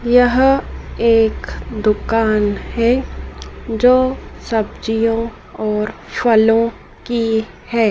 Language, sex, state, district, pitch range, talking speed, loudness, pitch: Hindi, female, Madhya Pradesh, Dhar, 220-240 Hz, 75 wpm, -17 LUFS, 225 Hz